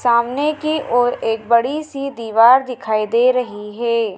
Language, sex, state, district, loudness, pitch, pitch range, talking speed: Hindi, female, Madhya Pradesh, Dhar, -17 LUFS, 240 Hz, 225-265 Hz, 145 wpm